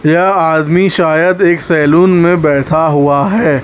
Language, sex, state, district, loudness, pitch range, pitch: Hindi, male, Chhattisgarh, Raipur, -10 LUFS, 155-180 Hz, 160 Hz